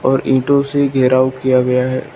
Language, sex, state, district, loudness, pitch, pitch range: Hindi, male, Uttar Pradesh, Lucknow, -14 LUFS, 130 Hz, 130-140 Hz